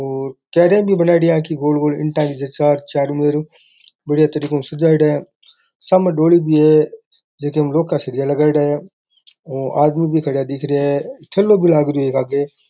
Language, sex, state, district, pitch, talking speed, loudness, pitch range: Rajasthani, male, Rajasthan, Nagaur, 150 Hz, 215 wpm, -16 LUFS, 145-165 Hz